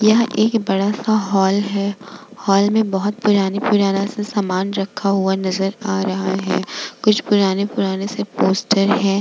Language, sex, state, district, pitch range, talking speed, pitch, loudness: Hindi, female, Bihar, Vaishali, 195-210 Hz, 155 wpm, 200 Hz, -18 LUFS